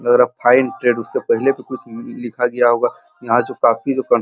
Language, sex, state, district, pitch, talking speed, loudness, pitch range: Hindi, male, Uttar Pradesh, Muzaffarnagar, 125 Hz, 215 wpm, -17 LUFS, 120-130 Hz